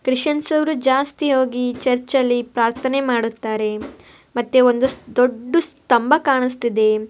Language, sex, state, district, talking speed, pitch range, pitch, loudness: Kannada, female, Karnataka, Bellary, 120 wpm, 240-275 Hz, 255 Hz, -19 LUFS